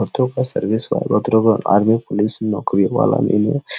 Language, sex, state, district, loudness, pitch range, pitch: Hindi, male, Jharkhand, Sahebganj, -17 LUFS, 105-115 Hz, 110 Hz